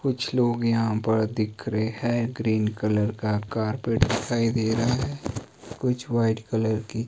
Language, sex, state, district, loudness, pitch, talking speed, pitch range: Hindi, male, Himachal Pradesh, Shimla, -25 LUFS, 115 Hz, 160 wpm, 110-120 Hz